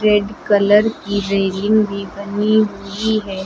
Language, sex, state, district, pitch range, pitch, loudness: Hindi, female, Uttar Pradesh, Lucknow, 200-210 Hz, 205 Hz, -17 LUFS